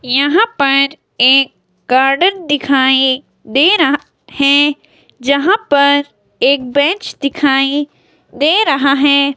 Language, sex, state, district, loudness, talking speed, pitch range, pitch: Hindi, female, Himachal Pradesh, Shimla, -12 LUFS, 105 wpm, 270-290 Hz, 280 Hz